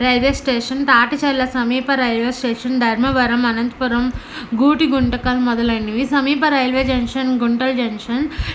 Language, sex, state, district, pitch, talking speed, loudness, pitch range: Telugu, female, Andhra Pradesh, Anantapur, 255 Hz, 125 wpm, -17 LUFS, 240-265 Hz